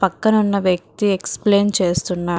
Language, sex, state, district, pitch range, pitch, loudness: Telugu, female, Telangana, Karimnagar, 180-205 Hz, 195 Hz, -18 LUFS